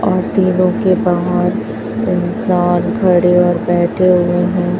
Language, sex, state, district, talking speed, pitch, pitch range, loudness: Hindi, female, Chhattisgarh, Raipur, 125 wpm, 180 Hz, 180-185 Hz, -14 LUFS